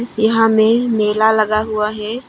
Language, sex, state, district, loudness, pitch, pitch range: Hindi, female, Arunachal Pradesh, Longding, -15 LUFS, 220 Hz, 215-225 Hz